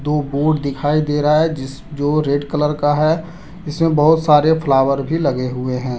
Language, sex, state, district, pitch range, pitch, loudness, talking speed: Hindi, male, Jharkhand, Deoghar, 140-155 Hz, 150 Hz, -16 LUFS, 200 wpm